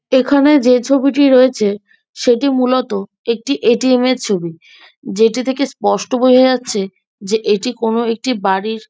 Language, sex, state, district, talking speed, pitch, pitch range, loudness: Bengali, female, West Bengal, Jhargram, 130 wpm, 245 Hz, 215-260 Hz, -14 LUFS